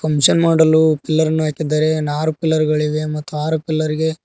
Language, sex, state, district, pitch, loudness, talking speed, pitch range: Kannada, male, Karnataka, Koppal, 155 Hz, -17 LUFS, 185 wpm, 150-160 Hz